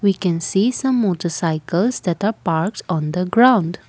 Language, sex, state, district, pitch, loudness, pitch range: English, female, Assam, Kamrup Metropolitan, 180 Hz, -19 LUFS, 170-220 Hz